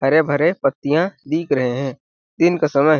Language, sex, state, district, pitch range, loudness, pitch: Hindi, male, Chhattisgarh, Balrampur, 140-160 Hz, -19 LUFS, 145 Hz